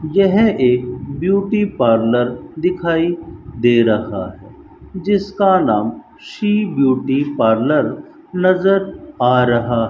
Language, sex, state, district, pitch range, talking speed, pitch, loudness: Hindi, male, Rajasthan, Bikaner, 120-195 Hz, 105 wpm, 145 Hz, -16 LUFS